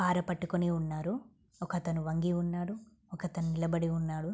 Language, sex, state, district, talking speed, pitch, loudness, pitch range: Telugu, female, Andhra Pradesh, Guntur, 110 wpm, 175 Hz, -34 LUFS, 165-180 Hz